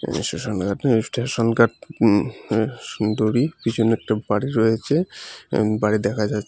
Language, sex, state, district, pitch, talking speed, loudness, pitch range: Bengali, male, Tripura, Unakoti, 110 Hz, 140 wpm, -21 LUFS, 105-115 Hz